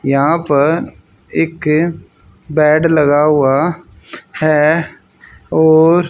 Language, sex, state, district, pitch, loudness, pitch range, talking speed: Hindi, female, Haryana, Jhajjar, 155 Hz, -13 LUFS, 150-165 Hz, 80 wpm